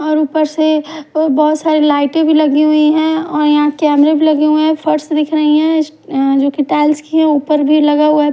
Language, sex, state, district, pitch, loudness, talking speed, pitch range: Hindi, female, Punjab, Fazilka, 305 Hz, -12 LUFS, 225 wpm, 295-310 Hz